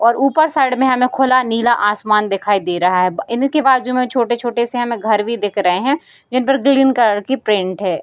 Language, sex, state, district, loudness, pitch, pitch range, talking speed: Hindi, female, Bihar, Darbhanga, -15 LUFS, 240 Hz, 205-265 Hz, 215 wpm